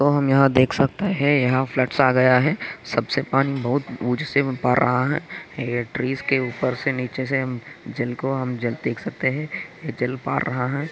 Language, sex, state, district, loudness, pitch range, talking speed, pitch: Hindi, male, Maharashtra, Aurangabad, -22 LUFS, 125-140 Hz, 190 wpm, 130 Hz